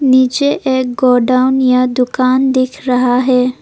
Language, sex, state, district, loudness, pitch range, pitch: Hindi, female, Assam, Kamrup Metropolitan, -12 LUFS, 250-260 Hz, 255 Hz